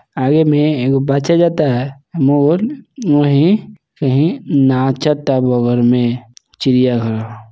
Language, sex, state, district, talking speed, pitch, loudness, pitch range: Hindi, male, Bihar, East Champaran, 80 wpm, 140 Hz, -14 LUFS, 125-155 Hz